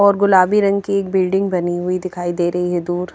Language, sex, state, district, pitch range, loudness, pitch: Hindi, female, Haryana, Charkhi Dadri, 175-195 Hz, -17 LUFS, 185 Hz